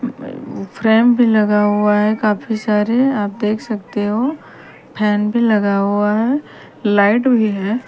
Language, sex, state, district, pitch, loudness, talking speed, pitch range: Hindi, female, Haryana, Charkhi Dadri, 215 Hz, -16 LUFS, 145 wpm, 210-240 Hz